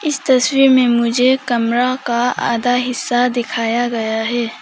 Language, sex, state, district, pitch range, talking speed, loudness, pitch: Hindi, female, Arunachal Pradesh, Papum Pare, 235-255 Hz, 145 wpm, -16 LUFS, 245 Hz